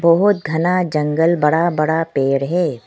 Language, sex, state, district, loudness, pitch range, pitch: Hindi, female, Arunachal Pradesh, Lower Dibang Valley, -17 LUFS, 150-175 Hz, 160 Hz